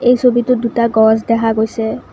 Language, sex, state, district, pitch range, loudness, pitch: Assamese, female, Assam, Kamrup Metropolitan, 220-240 Hz, -14 LUFS, 230 Hz